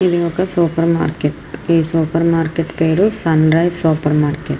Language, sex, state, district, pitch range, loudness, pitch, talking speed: Telugu, female, Andhra Pradesh, Srikakulam, 160-170 Hz, -16 LUFS, 165 Hz, 185 wpm